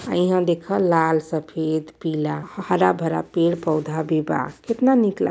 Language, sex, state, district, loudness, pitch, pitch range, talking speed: Bhojpuri, female, Uttar Pradesh, Varanasi, -21 LUFS, 160 Hz, 155-180 Hz, 170 wpm